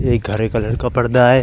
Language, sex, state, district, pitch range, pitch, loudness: Hindi, male, Chhattisgarh, Bilaspur, 115-125 Hz, 120 Hz, -17 LUFS